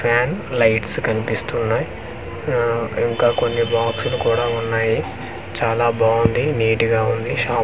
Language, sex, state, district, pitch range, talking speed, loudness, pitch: Telugu, male, Andhra Pradesh, Manyam, 115-120 Hz, 125 wpm, -19 LUFS, 115 Hz